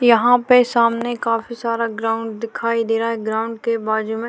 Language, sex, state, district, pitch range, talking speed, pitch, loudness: Hindi, female, Maharashtra, Chandrapur, 225-235 Hz, 195 wpm, 230 Hz, -19 LUFS